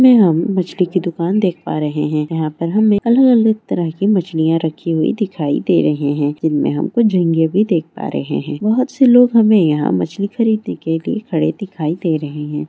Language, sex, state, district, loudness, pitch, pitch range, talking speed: Hindi, female, Chhattisgarh, Raigarh, -16 LUFS, 175 Hz, 155-215 Hz, 205 wpm